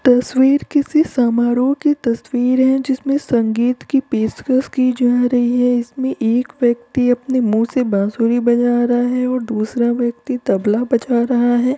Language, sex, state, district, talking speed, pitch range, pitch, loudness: Hindi, female, Uttar Pradesh, Varanasi, 160 wpm, 240-260 Hz, 245 Hz, -16 LUFS